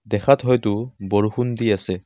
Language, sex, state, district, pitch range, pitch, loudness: Assamese, male, Assam, Kamrup Metropolitan, 105-125 Hz, 105 Hz, -20 LUFS